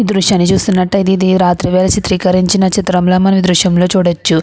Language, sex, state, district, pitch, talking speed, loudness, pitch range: Telugu, female, Andhra Pradesh, Anantapur, 185 Hz, 150 wpm, -11 LUFS, 180-190 Hz